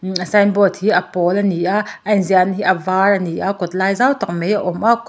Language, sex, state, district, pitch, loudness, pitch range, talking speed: Mizo, male, Mizoram, Aizawl, 195 Hz, -16 LUFS, 185-205 Hz, 280 wpm